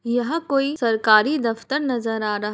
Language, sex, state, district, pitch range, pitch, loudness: Hindi, female, Uttar Pradesh, Jalaun, 220-275 Hz, 235 Hz, -21 LUFS